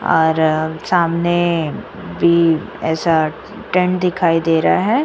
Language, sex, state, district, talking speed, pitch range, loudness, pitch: Hindi, female, Uttar Pradesh, Jyotiba Phule Nagar, 120 wpm, 160-175 Hz, -16 LUFS, 165 Hz